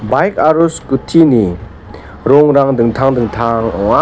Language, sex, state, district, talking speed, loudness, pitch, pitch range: Garo, male, Meghalaya, South Garo Hills, 120 wpm, -12 LUFS, 120 Hz, 105-140 Hz